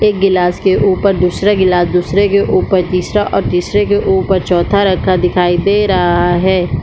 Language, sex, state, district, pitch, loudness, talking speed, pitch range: Hindi, female, Chhattisgarh, Bilaspur, 190 Hz, -12 LUFS, 175 wpm, 180-200 Hz